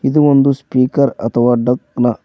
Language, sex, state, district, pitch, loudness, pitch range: Kannada, male, Karnataka, Koppal, 125 Hz, -14 LUFS, 120-140 Hz